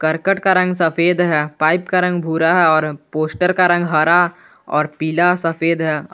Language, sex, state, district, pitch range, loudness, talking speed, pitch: Hindi, male, Jharkhand, Garhwa, 155-180 Hz, -16 LUFS, 185 wpm, 165 Hz